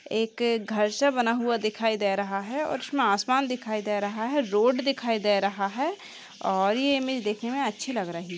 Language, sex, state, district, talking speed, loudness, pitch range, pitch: Hindi, male, Bihar, Bhagalpur, 215 wpm, -26 LUFS, 210-265 Hz, 225 Hz